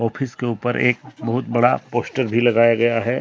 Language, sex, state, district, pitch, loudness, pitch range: Hindi, male, Jharkhand, Deoghar, 120 Hz, -19 LUFS, 115-125 Hz